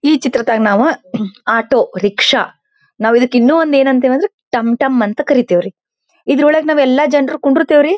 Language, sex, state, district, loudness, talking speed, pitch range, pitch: Kannada, female, Karnataka, Belgaum, -13 LUFS, 130 wpm, 235-300 Hz, 270 Hz